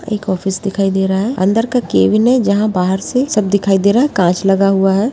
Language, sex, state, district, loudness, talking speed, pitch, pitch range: Hindi, female, Bihar, Jahanabad, -14 LUFS, 245 wpm, 200 Hz, 195-220 Hz